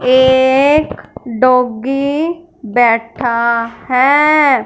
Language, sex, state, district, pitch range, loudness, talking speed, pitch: Hindi, female, Punjab, Fazilka, 235-280 Hz, -12 LUFS, 65 wpm, 255 Hz